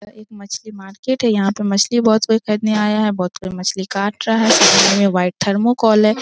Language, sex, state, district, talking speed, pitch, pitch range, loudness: Hindi, female, Jharkhand, Sahebganj, 220 wpm, 210 Hz, 195-220 Hz, -15 LUFS